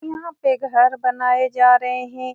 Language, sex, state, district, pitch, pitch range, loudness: Hindi, female, Bihar, Saran, 250 Hz, 250-265 Hz, -18 LUFS